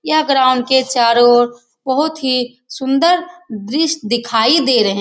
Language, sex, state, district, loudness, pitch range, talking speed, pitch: Hindi, female, Bihar, Jamui, -14 LUFS, 240-300 Hz, 155 wpm, 255 Hz